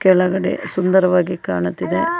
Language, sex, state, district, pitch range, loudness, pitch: Kannada, female, Karnataka, Koppal, 175-190 Hz, -18 LUFS, 180 Hz